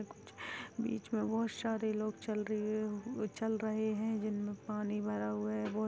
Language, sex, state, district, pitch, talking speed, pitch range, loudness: Hindi, female, Bihar, Kishanganj, 215 Hz, 165 wpm, 210-220 Hz, -38 LUFS